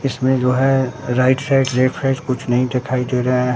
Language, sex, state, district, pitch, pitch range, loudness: Hindi, male, Bihar, Katihar, 130 Hz, 125-130 Hz, -17 LUFS